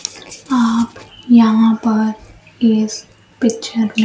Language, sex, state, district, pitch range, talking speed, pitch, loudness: Hindi, female, Bihar, Kaimur, 220-230 Hz, 90 wpm, 225 Hz, -15 LUFS